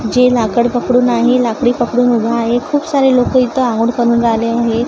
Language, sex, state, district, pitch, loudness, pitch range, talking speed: Marathi, female, Maharashtra, Gondia, 240 Hz, -13 LUFS, 235-250 Hz, 195 wpm